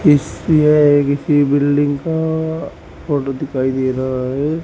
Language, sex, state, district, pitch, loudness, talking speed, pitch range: Hindi, male, Haryana, Rohtak, 145 Hz, -16 LUFS, 130 wpm, 135-155 Hz